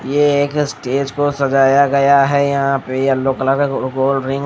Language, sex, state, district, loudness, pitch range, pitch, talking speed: Hindi, male, Odisha, Nuapada, -15 LUFS, 135-140 Hz, 140 Hz, 200 wpm